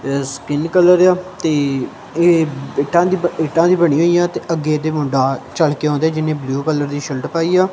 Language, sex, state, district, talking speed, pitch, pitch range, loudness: Punjabi, male, Punjab, Kapurthala, 210 wpm, 155 Hz, 145-170 Hz, -16 LUFS